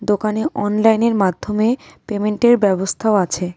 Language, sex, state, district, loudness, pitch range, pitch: Bengali, female, West Bengal, Cooch Behar, -17 LUFS, 200-220 Hz, 210 Hz